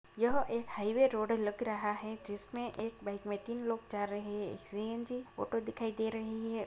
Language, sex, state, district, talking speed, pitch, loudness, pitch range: Hindi, female, Maharashtra, Sindhudurg, 200 wpm, 220 Hz, -37 LUFS, 210-235 Hz